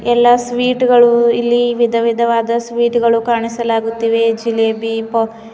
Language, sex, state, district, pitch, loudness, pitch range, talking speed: Kannada, female, Karnataka, Bidar, 235 Hz, -14 LUFS, 230-240 Hz, 110 wpm